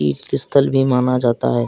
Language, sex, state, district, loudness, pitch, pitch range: Hindi, male, Jharkhand, Deoghar, -17 LUFS, 125 Hz, 120-135 Hz